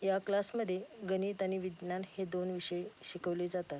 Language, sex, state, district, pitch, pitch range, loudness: Marathi, female, Maharashtra, Pune, 185 Hz, 180-190 Hz, -37 LUFS